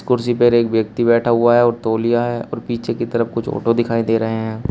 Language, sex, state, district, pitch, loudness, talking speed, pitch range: Hindi, male, Uttar Pradesh, Shamli, 115 Hz, -17 LUFS, 255 wpm, 115-120 Hz